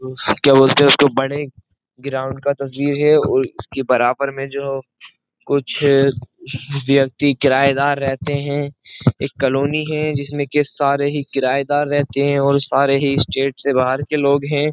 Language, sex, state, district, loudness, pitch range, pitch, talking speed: Hindi, male, Uttar Pradesh, Jyotiba Phule Nagar, -17 LUFS, 135-145 Hz, 140 Hz, 155 wpm